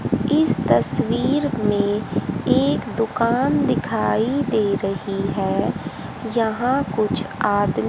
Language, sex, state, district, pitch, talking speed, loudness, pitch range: Hindi, female, Haryana, Charkhi Dadri, 215 Hz, 90 wpm, -20 LUFS, 200-245 Hz